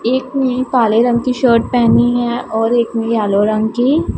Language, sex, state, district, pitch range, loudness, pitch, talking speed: Hindi, female, Punjab, Pathankot, 225-250 Hz, -14 LUFS, 240 Hz, 200 wpm